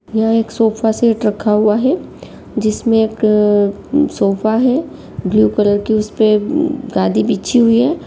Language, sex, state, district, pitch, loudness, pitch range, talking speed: Hindi, female, Uttar Pradesh, Jyotiba Phule Nagar, 220 Hz, -14 LUFS, 210-245 Hz, 150 wpm